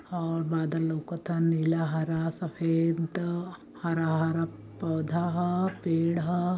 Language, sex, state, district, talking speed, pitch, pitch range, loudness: Hindi, female, Uttar Pradesh, Varanasi, 130 wpm, 165 Hz, 165-175 Hz, -29 LUFS